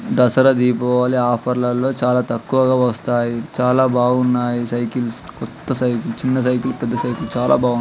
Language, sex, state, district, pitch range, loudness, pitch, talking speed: Telugu, male, Andhra Pradesh, Srikakulam, 120-125 Hz, -18 LUFS, 125 Hz, 160 wpm